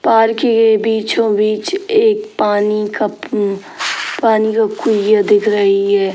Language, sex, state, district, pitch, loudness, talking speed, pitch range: Hindi, male, Bihar, Sitamarhi, 215 Hz, -14 LUFS, 125 wpm, 210-225 Hz